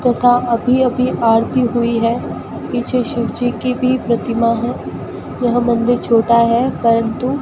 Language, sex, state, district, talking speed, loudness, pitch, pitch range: Hindi, female, Rajasthan, Bikaner, 145 wpm, -16 LUFS, 240 Hz, 235-250 Hz